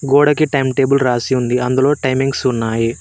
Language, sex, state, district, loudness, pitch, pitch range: Telugu, male, Telangana, Mahabubabad, -15 LUFS, 130 Hz, 125-140 Hz